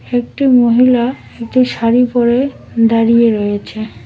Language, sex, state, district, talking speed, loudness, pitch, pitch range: Bengali, female, West Bengal, Cooch Behar, 105 wpm, -13 LUFS, 235 Hz, 230-250 Hz